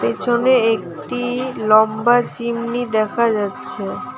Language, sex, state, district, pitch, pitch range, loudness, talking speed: Bengali, female, West Bengal, Alipurduar, 235 Hz, 215-245 Hz, -18 LUFS, 85 wpm